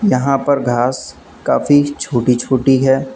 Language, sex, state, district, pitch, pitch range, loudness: Hindi, male, Uttar Pradesh, Lucknow, 135 Hz, 125-140 Hz, -15 LUFS